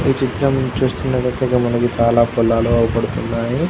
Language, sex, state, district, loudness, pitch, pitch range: Telugu, male, Telangana, Karimnagar, -17 LUFS, 120 Hz, 115-130 Hz